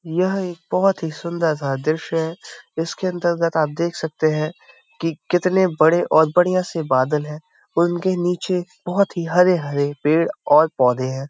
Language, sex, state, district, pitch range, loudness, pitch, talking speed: Hindi, male, Uttar Pradesh, Varanasi, 155-180 Hz, -20 LUFS, 165 Hz, 165 wpm